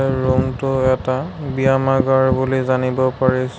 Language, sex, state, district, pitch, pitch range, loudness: Assamese, male, Assam, Sonitpur, 130 Hz, 130-135 Hz, -18 LUFS